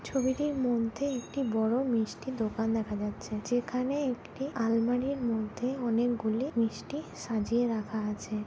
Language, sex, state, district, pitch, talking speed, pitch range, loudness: Bengali, female, West Bengal, Jhargram, 235 Hz, 120 wpm, 220-260 Hz, -31 LUFS